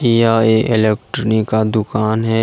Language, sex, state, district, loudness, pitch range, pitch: Hindi, male, Jharkhand, Deoghar, -15 LUFS, 110-115 Hz, 110 Hz